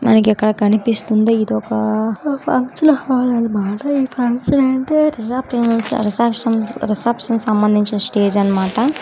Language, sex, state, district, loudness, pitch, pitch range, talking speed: Telugu, female, Telangana, Karimnagar, -16 LUFS, 230 Hz, 210-255 Hz, 60 wpm